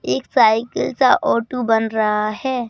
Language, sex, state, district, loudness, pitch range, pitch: Hindi, male, Madhya Pradesh, Bhopal, -18 LUFS, 210-245 Hz, 225 Hz